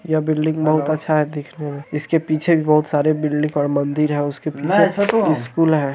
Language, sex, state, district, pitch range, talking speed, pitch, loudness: Hindi, male, Bihar, Bhagalpur, 145-155 Hz, 220 wpm, 155 Hz, -19 LUFS